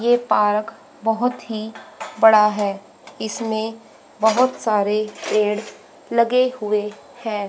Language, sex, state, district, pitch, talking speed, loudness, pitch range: Hindi, female, Haryana, Rohtak, 220 Hz, 105 wpm, -20 LUFS, 210-235 Hz